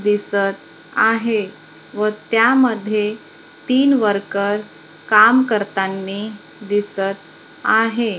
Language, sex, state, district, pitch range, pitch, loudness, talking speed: Marathi, female, Maharashtra, Gondia, 200-225 Hz, 210 Hz, -18 LUFS, 75 wpm